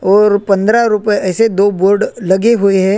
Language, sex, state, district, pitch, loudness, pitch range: Hindi, male, Chhattisgarh, Korba, 205 Hz, -12 LUFS, 195-210 Hz